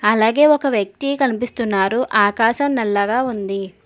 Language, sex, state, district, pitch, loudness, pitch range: Telugu, female, Telangana, Hyderabad, 225 Hz, -17 LUFS, 205-260 Hz